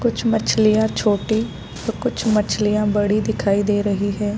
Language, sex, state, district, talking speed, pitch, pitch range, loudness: Hindi, female, Bihar, Darbhanga, 165 wpm, 210 Hz, 205-220 Hz, -19 LUFS